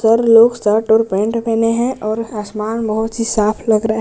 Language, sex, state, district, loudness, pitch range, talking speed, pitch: Hindi, male, Jharkhand, Garhwa, -15 LUFS, 215-230 Hz, 225 wpm, 225 Hz